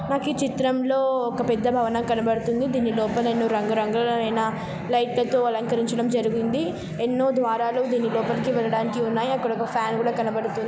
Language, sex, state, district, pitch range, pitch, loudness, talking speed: Telugu, female, Telangana, Nalgonda, 225-245 Hz, 235 Hz, -24 LUFS, 150 wpm